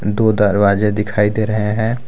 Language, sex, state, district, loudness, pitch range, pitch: Hindi, male, Jharkhand, Garhwa, -16 LUFS, 105-110 Hz, 105 Hz